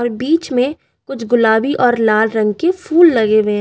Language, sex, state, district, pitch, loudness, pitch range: Hindi, female, Delhi, New Delhi, 240 Hz, -14 LUFS, 220-285 Hz